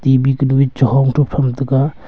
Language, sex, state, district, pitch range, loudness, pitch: Wancho, male, Arunachal Pradesh, Longding, 130-135 Hz, -14 LUFS, 135 Hz